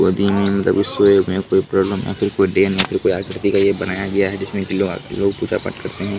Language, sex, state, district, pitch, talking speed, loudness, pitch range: Hindi, male, Bihar, Kishanganj, 100 Hz, 165 wpm, -18 LUFS, 95-100 Hz